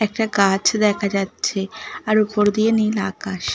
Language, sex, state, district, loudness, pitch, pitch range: Bengali, female, West Bengal, Malda, -19 LUFS, 210 Hz, 195-215 Hz